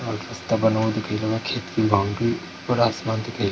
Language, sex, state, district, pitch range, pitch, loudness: Hindi, male, Bihar, Darbhanga, 105-115 Hz, 110 Hz, -23 LUFS